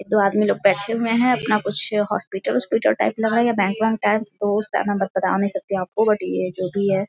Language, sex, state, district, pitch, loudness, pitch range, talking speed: Hindi, female, Bihar, Sitamarhi, 205 Hz, -21 LUFS, 195-220 Hz, 265 wpm